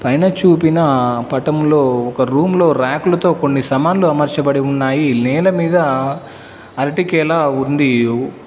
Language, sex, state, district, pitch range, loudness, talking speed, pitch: Telugu, male, Telangana, Mahabubabad, 130-165 Hz, -14 LUFS, 115 wpm, 145 Hz